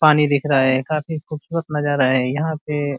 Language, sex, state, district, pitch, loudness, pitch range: Hindi, male, Uttar Pradesh, Ghazipur, 150 Hz, -19 LUFS, 140-155 Hz